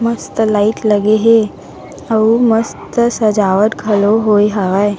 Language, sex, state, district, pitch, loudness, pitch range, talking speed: Chhattisgarhi, female, Chhattisgarh, Raigarh, 215 Hz, -13 LUFS, 205-225 Hz, 120 wpm